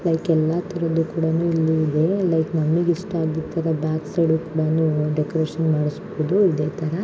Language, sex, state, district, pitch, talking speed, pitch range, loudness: Kannada, female, Karnataka, Shimoga, 160 Hz, 145 wpm, 155-170 Hz, -21 LUFS